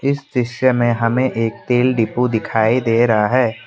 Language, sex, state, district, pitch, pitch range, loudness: Hindi, male, Assam, Kamrup Metropolitan, 120 Hz, 115-130 Hz, -17 LUFS